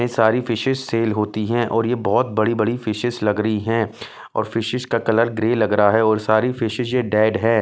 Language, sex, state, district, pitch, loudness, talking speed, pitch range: Hindi, male, Bihar, West Champaran, 115 Hz, -19 LUFS, 220 wpm, 110-120 Hz